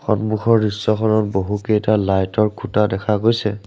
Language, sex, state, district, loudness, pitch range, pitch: Assamese, male, Assam, Sonitpur, -18 LUFS, 105-110 Hz, 105 Hz